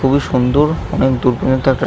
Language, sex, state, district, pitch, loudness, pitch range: Bengali, male, West Bengal, Jhargram, 130 Hz, -15 LUFS, 130-140 Hz